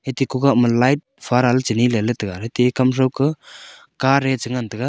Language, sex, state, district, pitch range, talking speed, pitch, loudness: Wancho, male, Arunachal Pradesh, Longding, 120-135 Hz, 195 wpm, 130 Hz, -18 LUFS